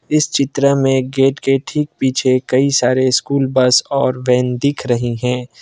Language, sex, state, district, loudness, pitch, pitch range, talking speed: Hindi, male, Assam, Kamrup Metropolitan, -15 LUFS, 130 Hz, 125-140 Hz, 170 wpm